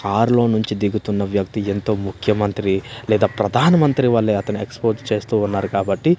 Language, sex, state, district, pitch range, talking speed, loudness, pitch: Telugu, male, Andhra Pradesh, Manyam, 100-115 Hz, 135 wpm, -19 LUFS, 105 Hz